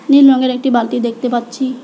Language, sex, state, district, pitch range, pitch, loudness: Bengali, female, West Bengal, Alipurduar, 240-265 Hz, 255 Hz, -14 LUFS